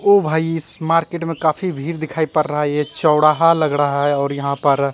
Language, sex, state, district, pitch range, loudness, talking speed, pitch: Hindi, male, Bihar, Katihar, 145-165 Hz, -18 LUFS, 230 wpm, 155 Hz